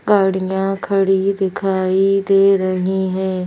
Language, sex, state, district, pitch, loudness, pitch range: Hindi, female, Madhya Pradesh, Bhopal, 190 Hz, -17 LUFS, 190-195 Hz